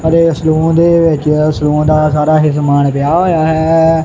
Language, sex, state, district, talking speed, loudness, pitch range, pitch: Punjabi, male, Punjab, Kapurthala, 175 wpm, -11 LUFS, 150-165 Hz, 155 Hz